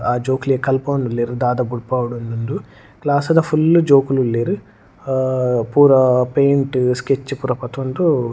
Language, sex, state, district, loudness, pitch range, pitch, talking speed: Tulu, male, Karnataka, Dakshina Kannada, -17 LUFS, 125-140 Hz, 130 Hz, 120 wpm